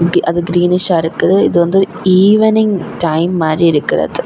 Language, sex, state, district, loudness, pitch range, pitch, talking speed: Tamil, female, Tamil Nadu, Kanyakumari, -12 LUFS, 170-195 Hz, 175 Hz, 125 wpm